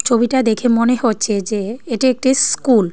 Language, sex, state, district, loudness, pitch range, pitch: Bengali, female, Tripura, Dhalai, -16 LUFS, 220-255 Hz, 235 Hz